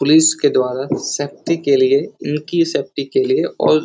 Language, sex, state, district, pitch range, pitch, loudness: Hindi, male, Uttar Pradesh, Etah, 140-165 Hz, 150 Hz, -17 LUFS